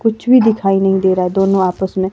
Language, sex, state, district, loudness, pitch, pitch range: Hindi, female, Himachal Pradesh, Shimla, -13 LUFS, 195 Hz, 190-215 Hz